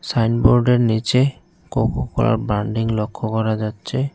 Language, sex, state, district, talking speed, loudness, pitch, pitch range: Bengali, male, West Bengal, Cooch Behar, 100 wpm, -19 LUFS, 115 Hz, 110-125 Hz